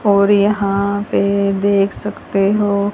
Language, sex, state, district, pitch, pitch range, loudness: Hindi, female, Haryana, Charkhi Dadri, 200 Hz, 200-205 Hz, -15 LUFS